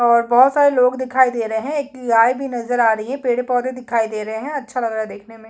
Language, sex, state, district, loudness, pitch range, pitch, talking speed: Hindi, female, Chhattisgarh, Kabirdham, -18 LUFS, 225-260 Hz, 245 Hz, 285 wpm